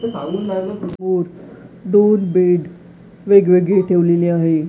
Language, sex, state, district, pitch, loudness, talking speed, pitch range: Marathi, female, Maharashtra, Gondia, 185 Hz, -16 LUFS, 65 wpm, 175-195 Hz